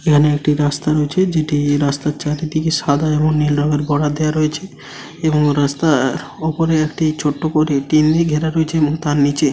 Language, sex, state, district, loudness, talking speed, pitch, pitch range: Bengali, male, West Bengal, Paschim Medinipur, -16 LUFS, 170 wpm, 150 Hz, 145-155 Hz